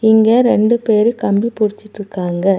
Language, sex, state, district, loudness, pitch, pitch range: Tamil, female, Tamil Nadu, Nilgiris, -14 LUFS, 215 Hz, 200-230 Hz